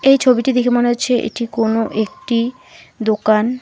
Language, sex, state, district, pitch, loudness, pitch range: Bengali, female, West Bengal, Alipurduar, 240 Hz, -17 LUFS, 225-255 Hz